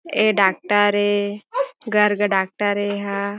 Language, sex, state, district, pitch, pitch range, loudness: Chhattisgarhi, female, Chhattisgarh, Jashpur, 205 Hz, 200-210 Hz, -20 LUFS